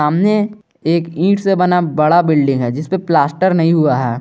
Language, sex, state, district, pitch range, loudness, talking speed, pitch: Hindi, male, Jharkhand, Garhwa, 150-190 Hz, -14 LUFS, 200 wpm, 170 Hz